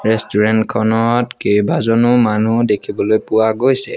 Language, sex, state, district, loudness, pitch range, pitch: Assamese, male, Assam, Sonitpur, -15 LUFS, 110-120 Hz, 110 Hz